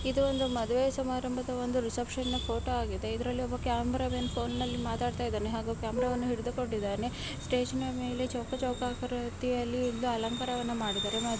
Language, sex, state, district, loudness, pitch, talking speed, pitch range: Kannada, female, Karnataka, Bellary, -33 LUFS, 245 Hz, 160 wpm, 235-255 Hz